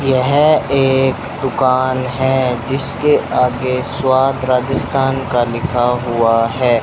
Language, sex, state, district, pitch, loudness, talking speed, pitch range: Hindi, male, Rajasthan, Bikaner, 130 Hz, -15 LUFS, 105 wpm, 125-135 Hz